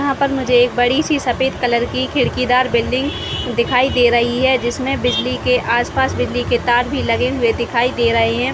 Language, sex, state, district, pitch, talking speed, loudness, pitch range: Hindi, female, Chhattisgarh, Raigarh, 250 Hz, 195 wpm, -16 LUFS, 240-265 Hz